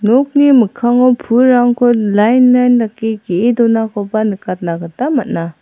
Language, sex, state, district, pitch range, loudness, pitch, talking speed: Garo, female, Meghalaya, South Garo Hills, 210-250 Hz, -12 LUFS, 235 Hz, 115 wpm